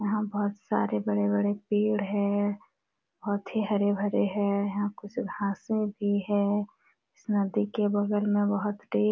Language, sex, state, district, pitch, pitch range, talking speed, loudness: Hindi, female, Jharkhand, Sahebganj, 205 Hz, 200-210 Hz, 150 wpm, -28 LUFS